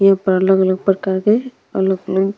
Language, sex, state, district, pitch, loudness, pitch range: Bhojpuri, female, Uttar Pradesh, Deoria, 190 Hz, -16 LUFS, 190-195 Hz